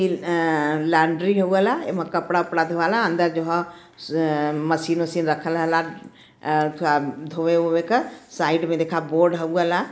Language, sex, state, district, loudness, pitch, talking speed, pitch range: Bhojpuri, female, Uttar Pradesh, Varanasi, -22 LUFS, 165 Hz, 170 wpm, 160-175 Hz